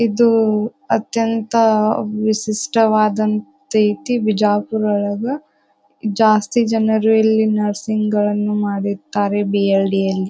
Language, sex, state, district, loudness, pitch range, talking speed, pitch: Kannada, female, Karnataka, Bijapur, -17 LUFS, 210-225 Hz, 70 wpm, 215 Hz